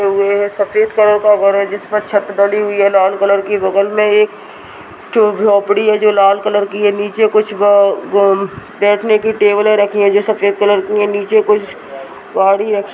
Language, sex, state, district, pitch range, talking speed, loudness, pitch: Hindi, female, Uttarakhand, Uttarkashi, 200-210 Hz, 190 wpm, -12 LUFS, 205 Hz